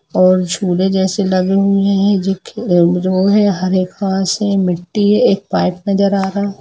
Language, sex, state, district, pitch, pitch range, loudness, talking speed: Hindi, female, Jharkhand, Jamtara, 195 Hz, 185-200 Hz, -14 LUFS, 180 wpm